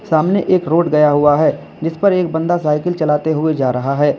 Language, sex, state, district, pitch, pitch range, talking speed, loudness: Hindi, male, Uttar Pradesh, Lalitpur, 160 Hz, 150-175 Hz, 230 wpm, -15 LUFS